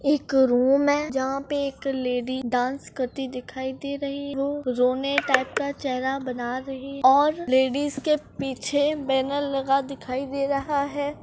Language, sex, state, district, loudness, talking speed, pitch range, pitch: Hindi, female, Maharashtra, Solapur, -25 LUFS, 160 wpm, 260-280 Hz, 275 Hz